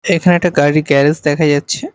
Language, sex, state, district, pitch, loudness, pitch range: Bengali, male, Odisha, Malkangiri, 155 Hz, -13 LUFS, 145-175 Hz